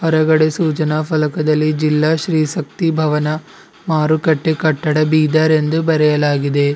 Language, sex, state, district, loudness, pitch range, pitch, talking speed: Kannada, male, Karnataka, Bidar, -15 LUFS, 150-160 Hz, 155 Hz, 105 wpm